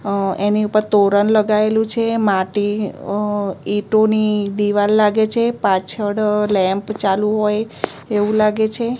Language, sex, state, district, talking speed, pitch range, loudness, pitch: Gujarati, female, Gujarat, Gandhinagar, 125 wpm, 205-215 Hz, -17 LUFS, 210 Hz